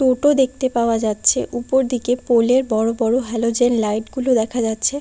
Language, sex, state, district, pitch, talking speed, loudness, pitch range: Bengali, female, West Bengal, Kolkata, 240 Hz, 170 wpm, -18 LUFS, 230-255 Hz